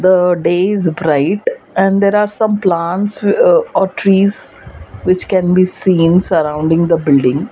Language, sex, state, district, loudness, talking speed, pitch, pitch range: English, female, Gujarat, Valsad, -13 LUFS, 150 wpm, 185 Hz, 170-200 Hz